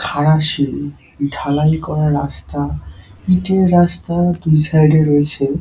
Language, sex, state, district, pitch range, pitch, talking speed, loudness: Bengali, male, West Bengal, Dakshin Dinajpur, 140-160 Hz, 150 Hz, 120 wpm, -15 LUFS